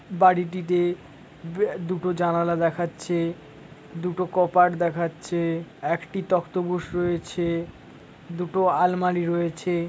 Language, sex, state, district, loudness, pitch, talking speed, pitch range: Bengali, male, West Bengal, Paschim Medinipur, -24 LUFS, 175 Hz, 80 wpm, 170-180 Hz